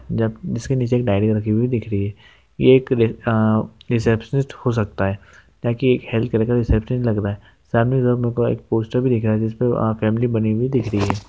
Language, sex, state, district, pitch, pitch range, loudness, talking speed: Hindi, male, West Bengal, Malda, 115 Hz, 110-125 Hz, -20 LUFS, 220 wpm